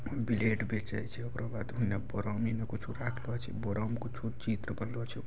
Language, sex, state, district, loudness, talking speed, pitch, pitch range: Maithili, male, Bihar, Bhagalpur, -36 LUFS, 195 wpm, 115 Hz, 110-120 Hz